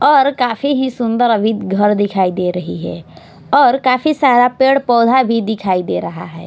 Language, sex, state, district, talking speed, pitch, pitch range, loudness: Hindi, female, Punjab, Pathankot, 185 wpm, 235 Hz, 205-260 Hz, -14 LUFS